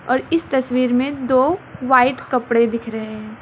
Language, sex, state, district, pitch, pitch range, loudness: Hindi, female, West Bengal, Alipurduar, 250 Hz, 235-265 Hz, -18 LUFS